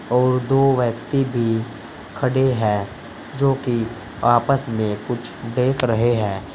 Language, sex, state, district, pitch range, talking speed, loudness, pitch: Hindi, male, Uttar Pradesh, Saharanpur, 110-130 Hz, 130 wpm, -20 LUFS, 120 Hz